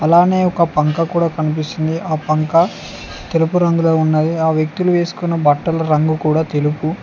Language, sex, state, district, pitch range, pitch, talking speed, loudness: Telugu, male, Telangana, Mahabubabad, 155-170 Hz, 160 Hz, 145 wpm, -16 LUFS